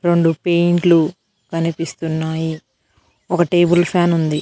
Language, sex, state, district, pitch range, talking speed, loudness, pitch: Telugu, female, Telangana, Mahabubabad, 160-175 Hz, 95 wpm, -17 LUFS, 165 Hz